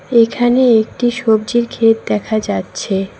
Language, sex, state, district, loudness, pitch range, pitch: Bengali, female, West Bengal, Cooch Behar, -15 LUFS, 215-240 Hz, 225 Hz